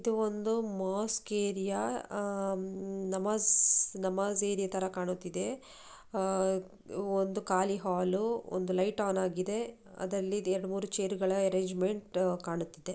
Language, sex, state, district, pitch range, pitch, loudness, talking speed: Kannada, female, Karnataka, Bijapur, 190-205 Hz, 195 Hz, -32 LUFS, 110 wpm